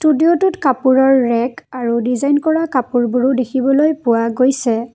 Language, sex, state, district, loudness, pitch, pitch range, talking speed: Assamese, female, Assam, Kamrup Metropolitan, -15 LUFS, 260 Hz, 245-285 Hz, 110 wpm